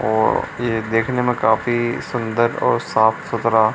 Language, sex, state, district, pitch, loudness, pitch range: Hindi, male, Bihar, Supaul, 115 Hz, -19 LUFS, 110-120 Hz